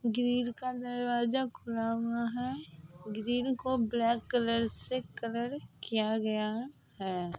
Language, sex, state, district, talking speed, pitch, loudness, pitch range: Hindi, female, Bihar, Purnia, 120 wpm, 235 Hz, -33 LUFS, 220-245 Hz